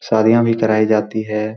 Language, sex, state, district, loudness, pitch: Hindi, male, Bihar, Supaul, -16 LUFS, 110 Hz